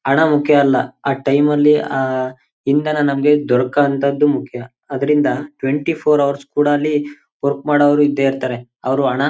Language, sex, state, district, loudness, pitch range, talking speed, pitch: Kannada, male, Karnataka, Chamarajanagar, -16 LUFS, 135-145 Hz, 125 wpm, 140 Hz